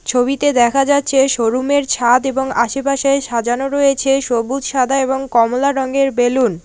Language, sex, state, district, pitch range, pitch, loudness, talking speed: Bengali, female, West Bengal, Alipurduar, 245-275 Hz, 265 Hz, -15 LUFS, 155 wpm